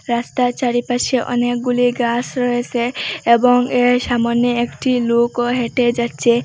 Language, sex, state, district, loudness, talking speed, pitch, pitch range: Bengali, female, Assam, Hailakandi, -17 LUFS, 110 wpm, 245 Hz, 240-245 Hz